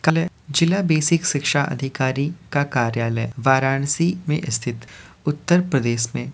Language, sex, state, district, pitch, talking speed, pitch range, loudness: Hindi, male, Uttar Pradesh, Varanasi, 140 Hz, 140 wpm, 120-160 Hz, -21 LUFS